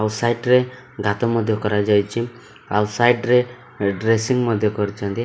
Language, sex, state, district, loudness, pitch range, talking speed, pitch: Odia, male, Odisha, Malkangiri, -20 LUFS, 105-120 Hz, 135 wpm, 115 Hz